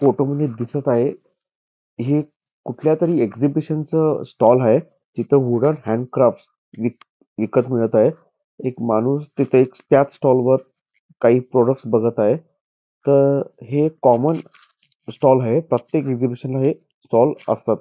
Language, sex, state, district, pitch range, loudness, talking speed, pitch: Marathi, male, Karnataka, Belgaum, 120-150 Hz, -19 LUFS, 120 wpm, 135 Hz